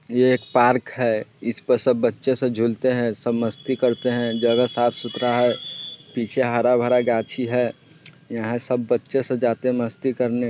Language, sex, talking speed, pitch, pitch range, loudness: Bajjika, male, 165 wpm, 120 Hz, 120-130 Hz, -22 LUFS